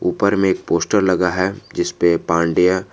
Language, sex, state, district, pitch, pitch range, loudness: Hindi, male, Jharkhand, Garhwa, 90 Hz, 85-95 Hz, -17 LUFS